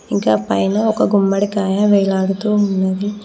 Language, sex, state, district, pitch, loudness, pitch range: Telugu, female, Telangana, Mahabubabad, 200 Hz, -16 LUFS, 190-205 Hz